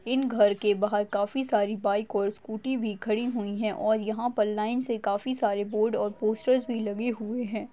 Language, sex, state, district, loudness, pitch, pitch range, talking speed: Hindi, female, Maharashtra, Chandrapur, -28 LUFS, 220 Hz, 210-240 Hz, 200 wpm